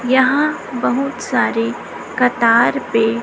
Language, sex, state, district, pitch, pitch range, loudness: Hindi, female, Chhattisgarh, Raipur, 240 Hz, 230-260 Hz, -16 LUFS